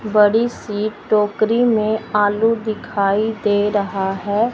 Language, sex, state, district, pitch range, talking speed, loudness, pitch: Hindi, male, Chandigarh, Chandigarh, 205-220 Hz, 120 wpm, -18 LUFS, 215 Hz